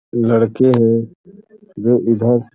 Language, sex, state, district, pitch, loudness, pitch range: Hindi, male, Uttar Pradesh, Etah, 120 Hz, -15 LUFS, 115-135 Hz